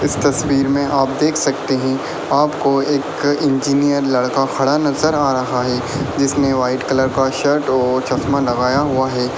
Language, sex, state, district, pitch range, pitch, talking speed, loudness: Hindi, male, Bihar, Gaya, 130-145 Hz, 135 Hz, 165 wpm, -17 LUFS